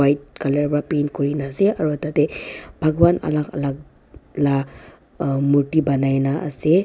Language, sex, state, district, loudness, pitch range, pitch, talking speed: Nagamese, female, Nagaland, Dimapur, -20 LUFS, 140-155 Hz, 145 Hz, 140 wpm